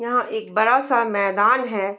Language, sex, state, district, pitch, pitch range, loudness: Hindi, female, Bihar, Darbhanga, 220 Hz, 205-245 Hz, -19 LUFS